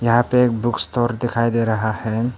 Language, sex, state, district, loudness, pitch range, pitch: Hindi, male, Arunachal Pradesh, Papum Pare, -19 LUFS, 115-120 Hz, 115 Hz